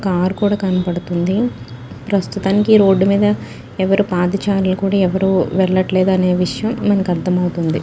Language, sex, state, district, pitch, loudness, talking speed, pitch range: Telugu, female, Telangana, Nalgonda, 190 Hz, -16 LUFS, 105 wpm, 180-200 Hz